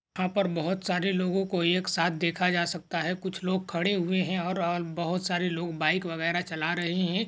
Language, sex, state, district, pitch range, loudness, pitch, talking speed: Hindi, male, Maharashtra, Dhule, 170-185 Hz, -28 LUFS, 180 Hz, 215 wpm